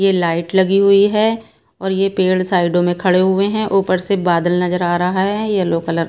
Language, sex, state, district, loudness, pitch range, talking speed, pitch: Hindi, female, Bihar, Katihar, -16 LUFS, 175-195 Hz, 225 wpm, 185 Hz